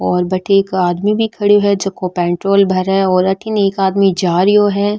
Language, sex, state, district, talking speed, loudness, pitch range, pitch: Marwari, female, Rajasthan, Nagaur, 205 wpm, -14 LUFS, 185-205 Hz, 195 Hz